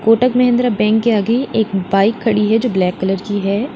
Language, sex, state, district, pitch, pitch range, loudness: Hindi, female, Uttar Pradesh, Lalitpur, 220 Hz, 200-235 Hz, -15 LUFS